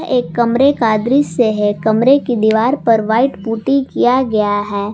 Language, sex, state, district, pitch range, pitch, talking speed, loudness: Hindi, female, Jharkhand, Garhwa, 215-260 Hz, 230 Hz, 170 wpm, -14 LUFS